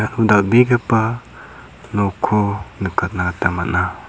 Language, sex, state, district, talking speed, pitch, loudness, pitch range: Garo, male, Meghalaya, South Garo Hills, 75 wpm, 110 Hz, -18 LUFS, 105-115 Hz